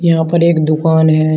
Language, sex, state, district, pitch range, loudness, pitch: Hindi, male, Uttar Pradesh, Shamli, 155-170 Hz, -12 LUFS, 160 Hz